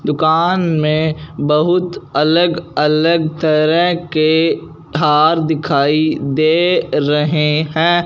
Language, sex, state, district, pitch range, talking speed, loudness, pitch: Hindi, male, Punjab, Fazilka, 150-165 Hz, 90 wpm, -14 LUFS, 155 Hz